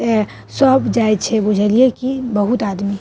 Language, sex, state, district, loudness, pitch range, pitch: Maithili, female, Bihar, Madhepura, -16 LUFS, 205-250 Hz, 220 Hz